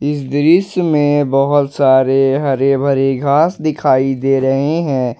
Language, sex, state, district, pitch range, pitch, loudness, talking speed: Hindi, male, Jharkhand, Ranchi, 135-145 Hz, 140 Hz, -14 LUFS, 140 wpm